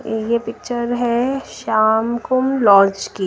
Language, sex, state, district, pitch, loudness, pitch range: Hindi, female, Odisha, Nuapada, 235 Hz, -17 LUFS, 220-245 Hz